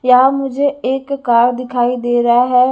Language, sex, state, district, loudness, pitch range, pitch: Hindi, female, Chhattisgarh, Raipur, -14 LUFS, 245-270 Hz, 250 Hz